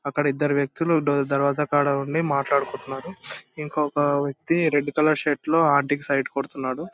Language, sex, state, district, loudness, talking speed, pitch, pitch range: Telugu, male, Andhra Pradesh, Anantapur, -23 LUFS, 155 wpm, 145 Hz, 140-155 Hz